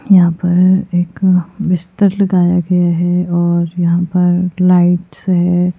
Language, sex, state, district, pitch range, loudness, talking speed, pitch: Hindi, female, Himachal Pradesh, Shimla, 175-185 Hz, -13 LUFS, 125 wpm, 180 Hz